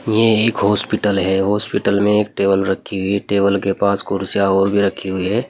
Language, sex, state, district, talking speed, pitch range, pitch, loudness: Hindi, male, Uttar Pradesh, Saharanpur, 205 wpm, 95-105 Hz, 100 Hz, -17 LUFS